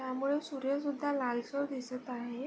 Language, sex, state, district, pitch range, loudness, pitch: Marathi, female, Maharashtra, Sindhudurg, 250-280 Hz, -35 LUFS, 270 Hz